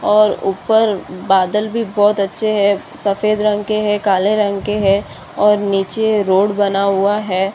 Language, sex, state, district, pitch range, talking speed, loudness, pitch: Hindi, female, Bihar, Madhepura, 195-210 Hz, 175 wpm, -16 LUFS, 205 Hz